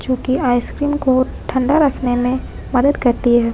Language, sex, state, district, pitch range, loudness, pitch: Hindi, female, Jharkhand, Ranchi, 245-275 Hz, -16 LUFS, 260 Hz